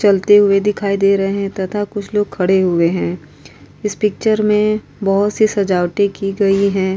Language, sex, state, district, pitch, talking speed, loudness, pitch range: Hindi, female, Uttar Pradesh, Varanasi, 200 Hz, 180 wpm, -16 LUFS, 190-205 Hz